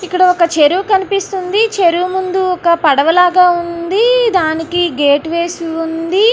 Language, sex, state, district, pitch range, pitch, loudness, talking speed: Telugu, female, Andhra Pradesh, Anantapur, 335-380 Hz, 360 Hz, -13 LUFS, 140 wpm